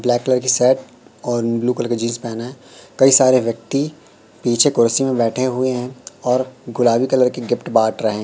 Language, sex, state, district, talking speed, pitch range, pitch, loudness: Hindi, male, Madhya Pradesh, Katni, 195 wpm, 120-130 Hz, 125 Hz, -17 LUFS